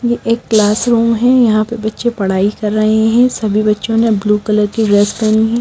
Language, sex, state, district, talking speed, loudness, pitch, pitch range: Hindi, female, Himachal Pradesh, Shimla, 225 wpm, -13 LUFS, 220 Hz, 210-230 Hz